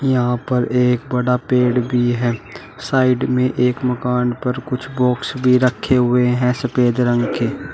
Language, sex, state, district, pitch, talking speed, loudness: Hindi, male, Uttar Pradesh, Shamli, 125 Hz, 165 wpm, -17 LUFS